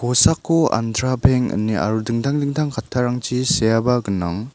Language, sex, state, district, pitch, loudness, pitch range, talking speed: Garo, male, Meghalaya, South Garo Hills, 125 Hz, -19 LUFS, 110-130 Hz, 130 wpm